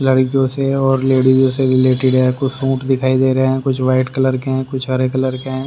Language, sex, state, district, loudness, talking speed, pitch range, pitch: Hindi, male, Haryana, Rohtak, -15 LUFS, 265 wpm, 130-135 Hz, 130 Hz